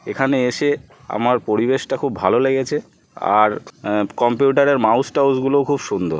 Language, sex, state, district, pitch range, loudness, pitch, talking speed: Bengali, male, West Bengal, North 24 Parganas, 105-140 Hz, -18 LUFS, 130 Hz, 165 wpm